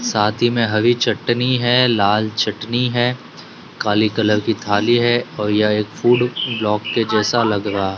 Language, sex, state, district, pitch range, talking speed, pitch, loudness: Hindi, male, Gujarat, Gandhinagar, 105-120 Hz, 175 wpm, 115 Hz, -17 LUFS